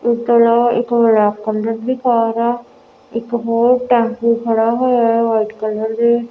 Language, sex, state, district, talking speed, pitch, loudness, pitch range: Punjabi, female, Punjab, Kapurthala, 170 wpm, 235 Hz, -15 LUFS, 225-240 Hz